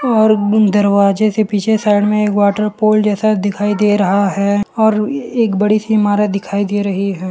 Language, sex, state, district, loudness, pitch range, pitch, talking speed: Hindi, male, Gujarat, Valsad, -14 LUFS, 200-215 Hz, 205 Hz, 205 wpm